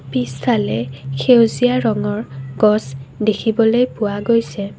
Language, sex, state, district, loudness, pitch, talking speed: Assamese, female, Assam, Kamrup Metropolitan, -17 LUFS, 205 Hz, 90 wpm